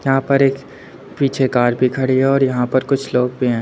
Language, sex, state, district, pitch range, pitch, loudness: Hindi, male, Uttar Pradesh, Lucknow, 125-135 Hz, 130 Hz, -16 LUFS